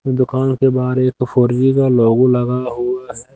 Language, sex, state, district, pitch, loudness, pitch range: Hindi, male, Haryana, Jhajjar, 125 Hz, -15 LUFS, 125-130 Hz